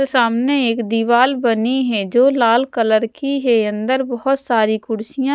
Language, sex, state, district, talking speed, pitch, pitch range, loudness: Hindi, female, Odisha, Sambalpur, 155 wpm, 240 Hz, 225-265 Hz, -16 LUFS